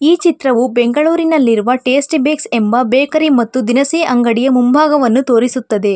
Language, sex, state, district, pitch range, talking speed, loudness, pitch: Kannada, female, Karnataka, Bangalore, 240-300 Hz, 120 wpm, -12 LUFS, 255 Hz